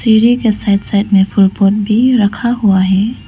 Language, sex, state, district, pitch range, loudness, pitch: Hindi, female, Arunachal Pradesh, Lower Dibang Valley, 200-230 Hz, -12 LUFS, 205 Hz